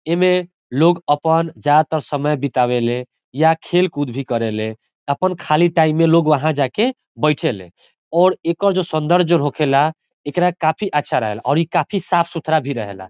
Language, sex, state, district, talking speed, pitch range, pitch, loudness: Bhojpuri, male, Bihar, Saran, 165 wpm, 140-175 Hz, 160 Hz, -18 LUFS